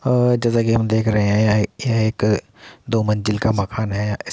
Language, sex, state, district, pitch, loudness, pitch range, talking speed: Hindi, male, Uttar Pradesh, Muzaffarnagar, 110 Hz, -19 LUFS, 105-115 Hz, 210 wpm